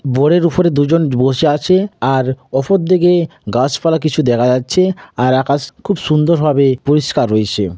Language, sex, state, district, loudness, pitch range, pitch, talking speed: Bengali, male, West Bengal, Jhargram, -14 LUFS, 130-170 Hz, 145 Hz, 145 wpm